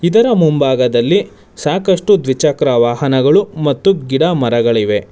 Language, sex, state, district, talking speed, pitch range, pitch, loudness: Kannada, male, Karnataka, Bangalore, 95 wpm, 120-175 Hz, 145 Hz, -13 LUFS